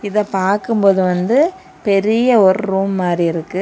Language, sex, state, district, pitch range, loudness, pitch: Tamil, female, Tamil Nadu, Kanyakumari, 185-215 Hz, -15 LUFS, 195 Hz